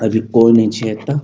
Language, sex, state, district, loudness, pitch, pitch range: Maithili, male, Bihar, Muzaffarpur, -14 LUFS, 110 Hz, 110-115 Hz